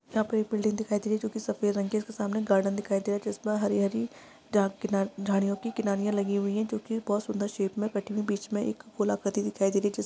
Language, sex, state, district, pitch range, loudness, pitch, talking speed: Hindi, female, Maharashtra, Sindhudurg, 200-215 Hz, -29 LUFS, 205 Hz, 260 wpm